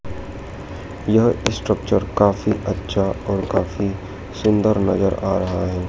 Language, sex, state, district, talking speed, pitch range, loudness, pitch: Hindi, male, Madhya Pradesh, Dhar, 110 wpm, 95-105 Hz, -20 LUFS, 100 Hz